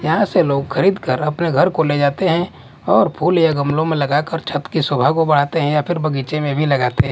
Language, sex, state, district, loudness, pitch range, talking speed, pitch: Hindi, male, Maharashtra, Mumbai Suburban, -17 LUFS, 140-165 Hz, 255 wpm, 155 Hz